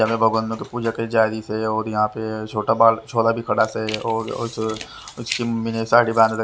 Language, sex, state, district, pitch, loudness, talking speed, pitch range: Hindi, male, Haryana, Rohtak, 110 Hz, -21 LUFS, 185 wpm, 110-115 Hz